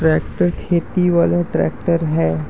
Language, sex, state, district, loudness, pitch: Hindi, male, Uttar Pradesh, Etah, -18 LUFS, 165 Hz